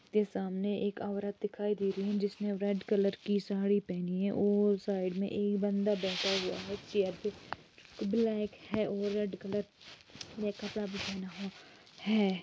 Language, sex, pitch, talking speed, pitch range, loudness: Urdu, female, 205 Hz, 170 wpm, 195-205 Hz, -34 LUFS